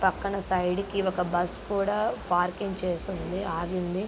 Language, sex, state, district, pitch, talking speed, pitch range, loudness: Telugu, female, Andhra Pradesh, Guntur, 190 Hz, 145 wpm, 180-195 Hz, -29 LUFS